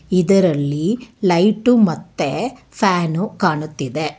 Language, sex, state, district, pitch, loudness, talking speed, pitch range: Kannada, female, Karnataka, Bangalore, 185 Hz, -18 LUFS, 70 wpm, 155-210 Hz